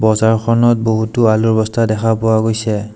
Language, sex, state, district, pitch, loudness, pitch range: Assamese, male, Assam, Sonitpur, 110 Hz, -14 LUFS, 110-115 Hz